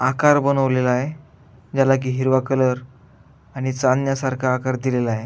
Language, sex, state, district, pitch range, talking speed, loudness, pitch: Marathi, male, Maharashtra, Aurangabad, 125-135 Hz, 115 wpm, -20 LUFS, 130 Hz